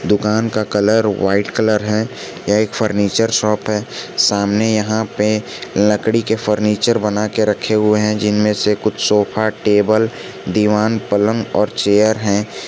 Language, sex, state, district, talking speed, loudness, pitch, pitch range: Hindi, male, Jharkhand, Garhwa, 145 wpm, -16 LUFS, 105 Hz, 105-110 Hz